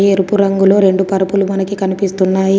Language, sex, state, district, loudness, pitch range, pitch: Telugu, female, Telangana, Komaram Bheem, -13 LUFS, 190-195 Hz, 195 Hz